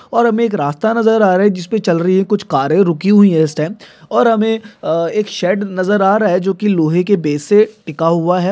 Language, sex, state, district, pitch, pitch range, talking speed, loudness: Hindi, male, Bihar, Sitamarhi, 200 Hz, 175-215 Hz, 260 wpm, -14 LUFS